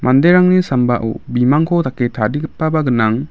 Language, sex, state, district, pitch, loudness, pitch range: Garo, male, Meghalaya, West Garo Hills, 130 Hz, -15 LUFS, 120-160 Hz